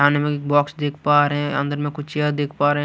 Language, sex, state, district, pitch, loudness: Hindi, male, Chhattisgarh, Raipur, 145 Hz, -20 LUFS